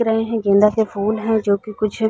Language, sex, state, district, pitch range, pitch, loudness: Hindi, female, Chhattisgarh, Balrampur, 210-220 Hz, 215 Hz, -18 LUFS